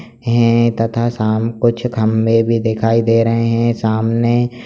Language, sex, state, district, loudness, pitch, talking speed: Hindi, male, Bihar, Jamui, -15 LUFS, 115 Hz, 155 wpm